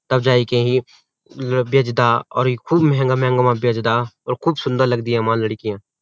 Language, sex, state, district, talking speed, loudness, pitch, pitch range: Garhwali, male, Uttarakhand, Uttarkashi, 140 wpm, -18 LUFS, 125 Hz, 120-130 Hz